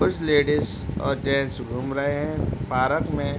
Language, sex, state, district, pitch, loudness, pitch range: Hindi, male, Uttar Pradesh, Deoria, 140 Hz, -24 LUFS, 130-145 Hz